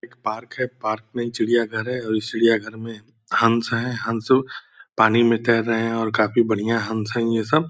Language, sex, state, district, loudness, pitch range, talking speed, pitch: Hindi, male, Bihar, Purnia, -21 LUFS, 110-120 Hz, 225 wpm, 115 Hz